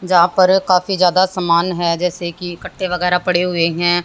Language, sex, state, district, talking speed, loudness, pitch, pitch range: Hindi, female, Haryana, Jhajjar, 190 wpm, -16 LUFS, 180 Hz, 175-185 Hz